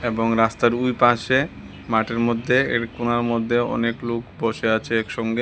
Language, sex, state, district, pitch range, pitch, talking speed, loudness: Bengali, male, Tripura, West Tripura, 115-120 Hz, 115 Hz, 145 wpm, -21 LUFS